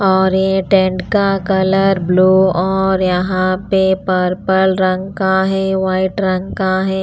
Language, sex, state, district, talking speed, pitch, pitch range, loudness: Hindi, female, Punjab, Pathankot, 145 wpm, 190 Hz, 185-190 Hz, -14 LUFS